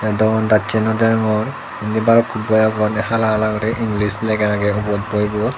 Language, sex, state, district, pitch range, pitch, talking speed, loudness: Chakma, male, Tripura, Dhalai, 105-110 Hz, 110 Hz, 170 wpm, -17 LUFS